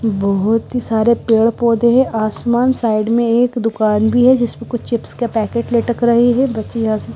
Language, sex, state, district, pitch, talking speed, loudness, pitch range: Hindi, female, Bihar, Katihar, 235 Hz, 185 wpm, -15 LUFS, 220-240 Hz